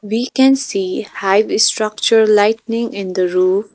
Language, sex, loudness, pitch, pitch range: English, female, -15 LUFS, 215 Hz, 195-225 Hz